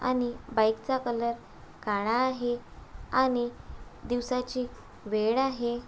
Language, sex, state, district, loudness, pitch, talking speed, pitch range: Marathi, female, Maharashtra, Aurangabad, -29 LUFS, 245 Hz, 100 wpm, 235-255 Hz